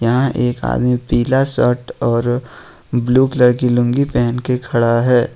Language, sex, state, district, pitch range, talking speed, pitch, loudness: Hindi, male, Jharkhand, Ranchi, 120-125 Hz, 155 wpm, 125 Hz, -16 LUFS